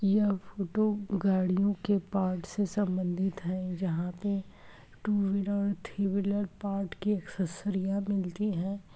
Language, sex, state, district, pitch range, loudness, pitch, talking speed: Hindi, female, Bihar, Saran, 185-205 Hz, -31 LUFS, 195 Hz, 125 wpm